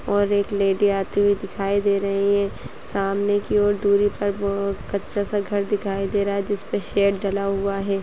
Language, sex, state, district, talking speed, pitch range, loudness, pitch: Kumaoni, female, Uttarakhand, Uttarkashi, 200 wpm, 200-205 Hz, -22 LUFS, 200 Hz